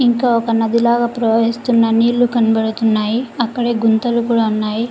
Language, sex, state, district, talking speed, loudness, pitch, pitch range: Telugu, female, Andhra Pradesh, Guntur, 135 wpm, -15 LUFS, 230 Hz, 225-240 Hz